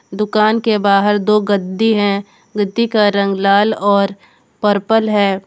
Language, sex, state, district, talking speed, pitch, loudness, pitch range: Hindi, female, Jharkhand, Garhwa, 140 wpm, 205 Hz, -15 LUFS, 200-215 Hz